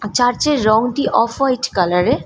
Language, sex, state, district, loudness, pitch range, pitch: Bengali, female, West Bengal, Malda, -16 LUFS, 215-270 Hz, 245 Hz